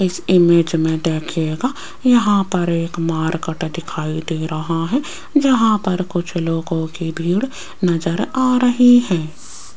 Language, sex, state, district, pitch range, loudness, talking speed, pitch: Hindi, female, Rajasthan, Jaipur, 160-210 Hz, -18 LUFS, 135 wpm, 170 Hz